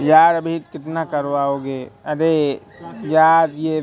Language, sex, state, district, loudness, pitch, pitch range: Hindi, male, Madhya Pradesh, Katni, -18 LUFS, 155 Hz, 140-160 Hz